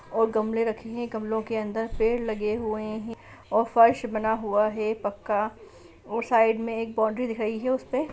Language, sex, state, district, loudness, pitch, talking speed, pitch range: Hindi, female, Bihar, Saran, -26 LUFS, 225 Hz, 190 wpm, 215-230 Hz